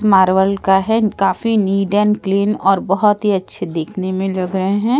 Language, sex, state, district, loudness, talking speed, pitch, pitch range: Hindi, female, Bihar, Katihar, -16 LUFS, 205 wpm, 195 Hz, 190-210 Hz